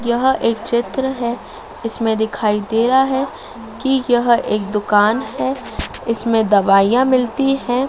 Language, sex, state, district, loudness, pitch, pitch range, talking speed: Hindi, female, Madhya Pradesh, Dhar, -17 LUFS, 235 Hz, 220-260 Hz, 135 wpm